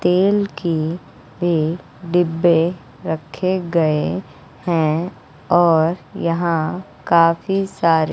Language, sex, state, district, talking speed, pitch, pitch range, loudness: Hindi, female, Bihar, West Champaran, 80 wpm, 170 Hz, 160-175 Hz, -19 LUFS